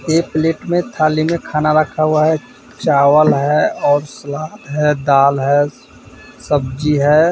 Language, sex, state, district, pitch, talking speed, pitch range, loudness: Hindi, male, Bihar, Vaishali, 150 Hz, 155 wpm, 145-155 Hz, -15 LUFS